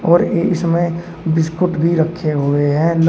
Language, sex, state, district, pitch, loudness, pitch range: Hindi, male, Uttar Pradesh, Shamli, 165 Hz, -16 LUFS, 160-170 Hz